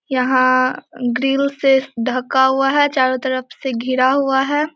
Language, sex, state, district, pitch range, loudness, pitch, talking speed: Hindi, female, Bihar, Samastipur, 255-270 Hz, -17 LUFS, 265 Hz, 150 wpm